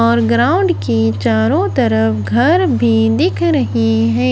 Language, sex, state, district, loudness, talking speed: Hindi, female, Haryana, Charkhi Dadri, -14 LUFS, 140 wpm